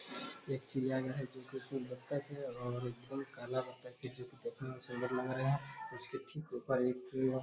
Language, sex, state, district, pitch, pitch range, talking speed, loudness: Hindi, male, Bihar, Darbhanga, 130 Hz, 125-135 Hz, 185 wpm, -41 LUFS